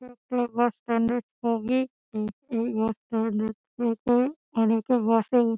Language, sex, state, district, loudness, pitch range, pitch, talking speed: Bengali, female, West Bengal, Dakshin Dinajpur, -26 LUFS, 225-245 Hz, 235 Hz, 160 wpm